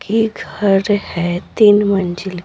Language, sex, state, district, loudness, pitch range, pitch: Hindi, female, Bihar, Patna, -15 LUFS, 180-205 Hz, 200 Hz